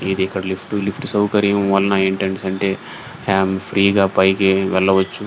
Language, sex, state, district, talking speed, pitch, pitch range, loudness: Telugu, male, Karnataka, Gulbarga, 135 wpm, 95 Hz, 95-100 Hz, -17 LUFS